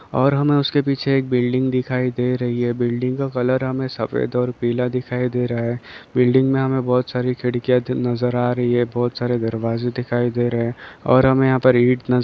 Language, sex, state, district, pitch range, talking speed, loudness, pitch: Hindi, male, Chhattisgarh, Raigarh, 120-130 Hz, 225 wpm, -19 LUFS, 125 Hz